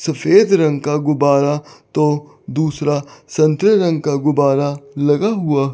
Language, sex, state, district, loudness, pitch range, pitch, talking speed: Hindi, male, Chandigarh, Chandigarh, -16 LUFS, 145-155 Hz, 150 Hz, 125 wpm